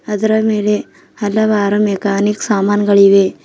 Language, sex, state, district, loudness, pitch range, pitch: Kannada, female, Karnataka, Bidar, -14 LUFS, 200-215 Hz, 205 Hz